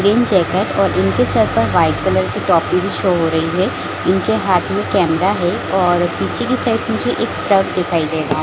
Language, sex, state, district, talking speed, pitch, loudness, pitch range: Hindi, female, Chhattisgarh, Bilaspur, 205 wpm, 180 Hz, -16 LUFS, 160-195 Hz